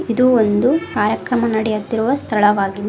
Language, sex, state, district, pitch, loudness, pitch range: Kannada, female, Karnataka, Koppal, 225 Hz, -17 LUFS, 210-245 Hz